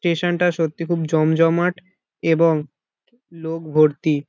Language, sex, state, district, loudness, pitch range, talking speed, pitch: Bengali, male, West Bengal, Kolkata, -19 LUFS, 155-175 Hz, 125 wpm, 165 Hz